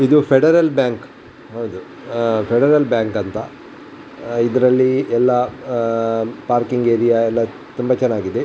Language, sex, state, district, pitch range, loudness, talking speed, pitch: Kannada, male, Karnataka, Dakshina Kannada, 115-130 Hz, -17 LUFS, 100 wpm, 120 Hz